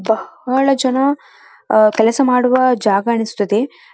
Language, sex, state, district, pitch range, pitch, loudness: Kannada, female, Karnataka, Dharwad, 220-270 Hz, 250 Hz, -15 LUFS